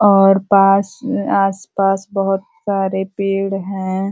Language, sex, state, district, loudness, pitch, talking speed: Hindi, female, Uttar Pradesh, Ghazipur, -16 LUFS, 195 Hz, 115 wpm